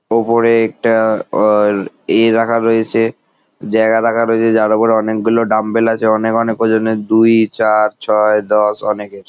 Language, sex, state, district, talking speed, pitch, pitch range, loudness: Bengali, male, West Bengal, Jalpaiguri, 140 wpm, 110 Hz, 105-115 Hz, -13 LUFS